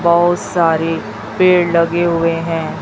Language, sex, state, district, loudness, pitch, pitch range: Hindi, female, Chhattisgarh, Raipur, -15 LUFS, 170 Hz, 165-175 Hz